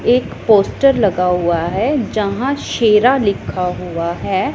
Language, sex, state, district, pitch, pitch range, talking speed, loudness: Hindi, female, Punjab, Pathankot, 210 Hz, 180-250 Hz, 130 wpm, -16 LUFS